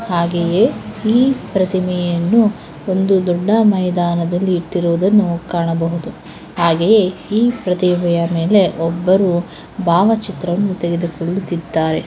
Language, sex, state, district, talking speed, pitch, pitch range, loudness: Kannada, female, Karnataka, Mysore, 75 wpm, 180 Hz, 170-195 Hz, -16 LUFS